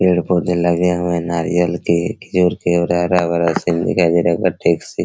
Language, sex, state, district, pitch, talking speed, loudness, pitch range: Hindi, male, Bihar, Araria, 85 Hz, 180 wpm, -17 LUFS, 85-90 Hz